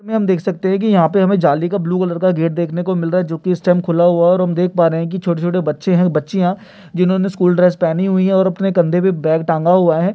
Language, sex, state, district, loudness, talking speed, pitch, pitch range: Hindi, male, Bihar, Kishanganj, -15 LUFS, 285 wpm, 180 Hz, 170-190 Hz